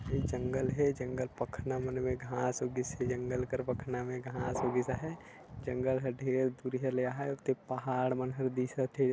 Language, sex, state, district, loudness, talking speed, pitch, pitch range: Chhattisgarhi, male, Chhattisgarh, Sarguja, -35 LUFS, 190 wpm, 130 Hz, 125-130 Hz